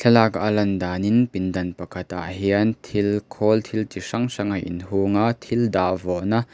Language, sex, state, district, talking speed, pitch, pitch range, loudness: Mizo, male, Mizoram, Aizawl, 175 wpm, 100 Hz, 90-110 Hz, -22 LUFS